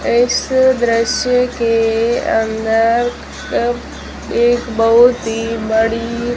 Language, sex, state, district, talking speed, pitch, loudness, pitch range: Hindi, female, Rajasthan, Jaisalmer, 75 wpm, 235 Hz, -15 LUFS, 225-240 Hz